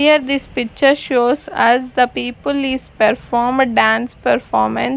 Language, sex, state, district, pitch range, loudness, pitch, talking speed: English, female, Punjab, Fazilka, 235-275 Hz, -16 LUFS, 250 Hz, 155 wpm